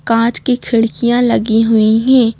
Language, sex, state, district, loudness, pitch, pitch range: Hindi, female, Madhya Pradesh, Bhopal, -13 LUFS, 230 Hz, 225-245 Hz